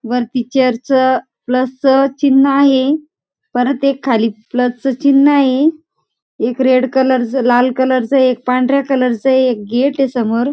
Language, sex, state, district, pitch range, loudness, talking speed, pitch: Marathi, female, Maharashtra, Aurangabad, 250-275 Hz, -14 LUFS, 155 wpm, 260 Hz